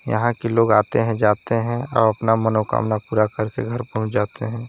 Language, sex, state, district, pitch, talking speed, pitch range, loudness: Hindi, male, Chhattisgarh, Sarguja, 110 Hz, 180 wpm, 110-115 Hz, -20 LUFS